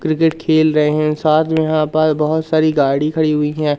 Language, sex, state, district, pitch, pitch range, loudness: Hindi, male, Madhya Pradesh, Umaria, 155 Hz, 150-155 Hz, -15 LUFS